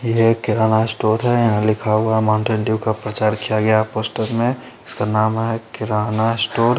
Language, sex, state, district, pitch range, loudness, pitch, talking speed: Hindi, male, Chandigarh, Chandigarh, 110-115 Hz, -18 LUFS, 110 Hz, 210 wpm